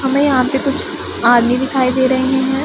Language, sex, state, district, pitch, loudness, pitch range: Hindi, female, Punjab, Pathankot, 265 Hz, -15 LUFS, 255-270 Hz